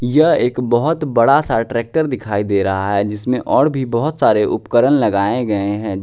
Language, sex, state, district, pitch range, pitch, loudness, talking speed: Hindi, male, Bihar, West Champaran, 100-135 Hz, 115 Hz, -16 LUFS, 190 wpm